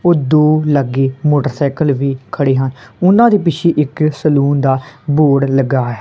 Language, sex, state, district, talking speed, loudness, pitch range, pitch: Punjabi, female, Punjab, Kapurthala, 160 wpm, -13 LUFS, 135-155 Hz, 140 Hz